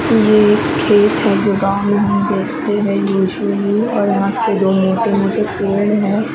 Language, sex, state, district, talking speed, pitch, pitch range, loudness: Hindi, female, Maharashtra, Mumbai Suburban, 190 wpm, 205 Hz, 195-210 Hz, -15 LUFS